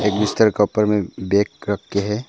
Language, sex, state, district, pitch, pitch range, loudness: Hindi, male, Arunachal Pradesh, Papum Pare, 105 Hz, 100-105 Hz, -19 LUFS